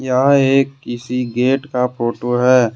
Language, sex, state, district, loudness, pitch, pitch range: Hindi, male, Jharkhand, Deoghar, -16 LUFS, 125 Hz, 120-135 Hz